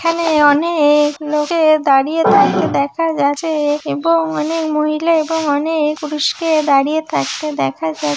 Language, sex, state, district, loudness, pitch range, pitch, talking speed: Bengali, female, West Bengal, Jalpaiguri, -15 LUFS, 290-320 Hz, 305 Hz, 125 wpm